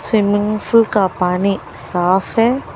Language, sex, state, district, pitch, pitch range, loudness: Hindi, female, Telangana, Hyderabad, 205 Hz, 185-225 Hz, -16 LUFS